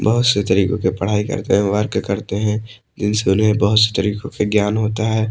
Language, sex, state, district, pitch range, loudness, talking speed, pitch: Hindi, male, Odisha, Malkangiri, 100-110 Hz, -18 LUFS, 205 wpm, 105 Hz